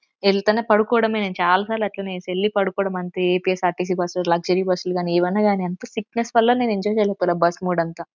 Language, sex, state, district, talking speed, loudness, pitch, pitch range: Telugu, female, Andhra Pradesh, Anantapur, 200 wpm, -21 LUFS, 185 Hz, 180-210 Hz